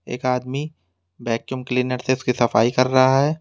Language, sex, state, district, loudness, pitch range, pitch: Hindi, male, Uttar Pradesh, Lalitpur, -20 LUFS, 120-130 Hz, 125 Hz